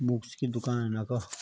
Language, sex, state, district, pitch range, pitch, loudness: Garhwali, male, Uttarakhand, Tehri Garhwal, 110-125 Hz, 120 Hz, -32 LUFS